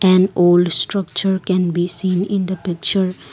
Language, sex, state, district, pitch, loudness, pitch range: English, female, Assam, Kamrup Metropolitan, 185 Hz, -17 LUFS, 175-190 Hz